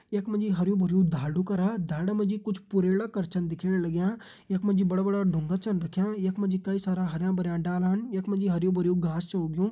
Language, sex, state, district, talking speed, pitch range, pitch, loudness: Hindi, male, Uttarakhand, Uttarkashi, 245 wpm, 180-200 Hz, 190 Hz, -28 LUFS